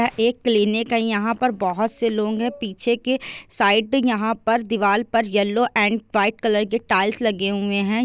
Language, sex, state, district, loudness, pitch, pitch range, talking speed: Hindi, female, Bihar, Jahanabad, -20 LUFS, 225 Hz, 210-235 Hz, 180 wpm